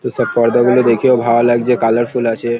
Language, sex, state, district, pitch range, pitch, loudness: Bengali, male, West Bengal, Paschim Medinipur, 115-125 Hz, 120 Hz, -13 LUFS